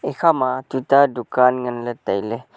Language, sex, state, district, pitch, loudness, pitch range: Wancho, male, Arunachal Pradesh, Longding, 130 Hz, -19 LUFS, 125-140 Hz